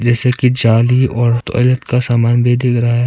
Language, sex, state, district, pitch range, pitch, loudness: Hindi, male, Arunachal Pradesh, Papum Pare, 120-125 Hz, 120 Hz, -13 LUFS